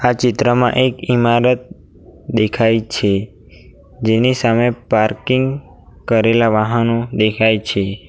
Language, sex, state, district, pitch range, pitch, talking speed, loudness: Gujarati, male, Gujarat, Valsad, 110-125 Hz, 115 Hz, 95 wpm, -16 LUFS